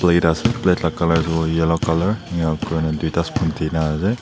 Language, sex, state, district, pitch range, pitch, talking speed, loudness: Nagamese, male, Nagaland, Dimapur, 80-90 Hz, 85 Hz, 200 wpm, -19 LUFS